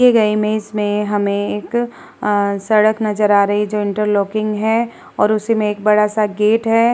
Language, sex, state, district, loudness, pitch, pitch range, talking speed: Hindi, female, Uttar Pradesh, Muzaffarnagar, -16 LUFS, 210 Hz, 205-220 Hz, 200 wpm